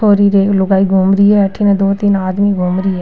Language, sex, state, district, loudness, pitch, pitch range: Rajasthani, female, Rajasthan, Nagaur, -12 LUFS, 195 Hz, 190-200 Hz